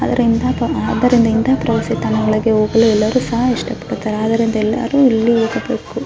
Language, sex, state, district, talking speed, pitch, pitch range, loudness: Kannada, female, Karnataka, Raichur, 140 wpm, 230 Hz, 220-245 Hz, -15 LUFS